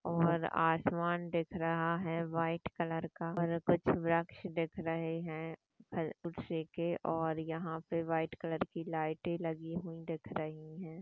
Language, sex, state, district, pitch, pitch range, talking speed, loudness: Hindi, female, Maharashtra, Chandrapur, 165 Hz, 160-170 Hz, 145 wpm, -37 LUFS